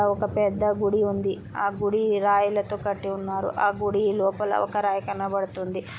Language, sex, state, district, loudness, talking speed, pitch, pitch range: Telugu, male, Andhra Pradesh, Anantapur, -25 LUFS, 160 wpm, 200 Hz, 195-205 Hz